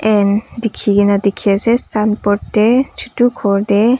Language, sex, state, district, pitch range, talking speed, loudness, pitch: Nagamese, female, Nagaland, Kohima, 205-230 Hz, 165 wpm, -14 LUFS, 215 Hz